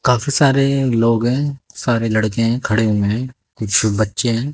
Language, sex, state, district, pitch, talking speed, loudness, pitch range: Hindi, male, Haryana, Jhajjar, 115 Hz, 160 wpm, -17 LUFS, 110-135 Hz